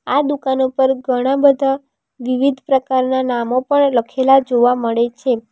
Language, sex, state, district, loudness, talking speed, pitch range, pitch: Gujarati, female, Gujarat, Valsad, -16 LUFS, 140 wpm, 250-270 Hz, 260 Hz